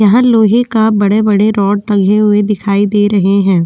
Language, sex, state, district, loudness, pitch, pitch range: Hindi, female, Goa, North and South Goa, -11 LUFS, 205 Hz, 200-215 Hz